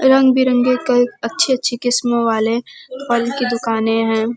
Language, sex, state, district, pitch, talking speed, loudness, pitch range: Hindi, female, Uttar Pradesh, Varanasi, 245 Hz, 150 wpm, -16 LUFS, 230-255 Hz